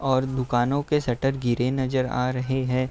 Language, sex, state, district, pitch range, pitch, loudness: Hindi, male, Uttar Pradesh, Deoria, 125-135 Hz, 130 Hz, -24 LUFS